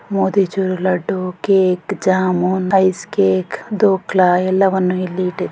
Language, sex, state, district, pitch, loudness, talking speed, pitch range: Kannada, female, Karnataka, Gulbarga, 185 Hz, -16 LUFS, 120 wpm, 180-195 Hz